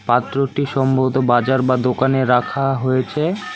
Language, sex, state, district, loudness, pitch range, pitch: Bengali, male, West Bengal, Alipurduar, -17 LUFS, 130-135 Hz, 130 Hz